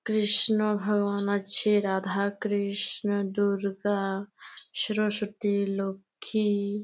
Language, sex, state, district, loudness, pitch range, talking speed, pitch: Bengali, female, West Bengal, Malda, -26 LUFS, 200-210 Hz, 70 wpm, 205 Hz